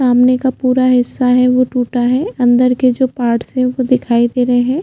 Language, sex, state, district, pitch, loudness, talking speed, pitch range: Hindi, female, Chhattisgarh, Jashpur, 250 Hz, -13 LUFS, 225 wpm, 245-255 Hz